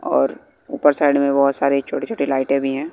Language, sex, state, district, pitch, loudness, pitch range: Hindi, male, Bihar, West Champaran, 140 Hz, -18 LUFS, 135-140 Hz